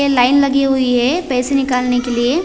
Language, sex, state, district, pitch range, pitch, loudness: Hindi, female, Maharashtra, Washim, 250-275 Hz, 260 Hz, -15 LUFS